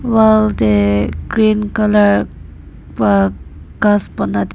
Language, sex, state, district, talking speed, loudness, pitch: Nagamese, female, Nagaland, Dimapur, 105 wpm, -14 LUFS, 105 Hz